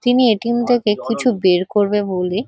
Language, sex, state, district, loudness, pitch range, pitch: Bengali, female, West Bengal, Kolkata, -17 LUFS, 195-240 Hz, 215 Hz